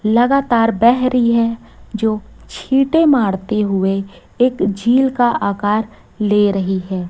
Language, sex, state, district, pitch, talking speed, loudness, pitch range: Hindi, female, Chhattisgarh, Raipur, 220 Hz, 125 wpm, -16 LUFS, 200-245 Hz